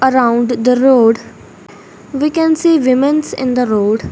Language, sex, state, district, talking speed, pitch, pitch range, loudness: English, female, Punjab, Fazilka, 145 wpm, 255 Hz, 240-295 Hz, -13 LUFS